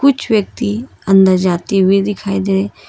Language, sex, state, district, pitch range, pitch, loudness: Hindi, female, Karnataka, Bangalore, 195-215 Hz, 195 Hz, -14 LUFS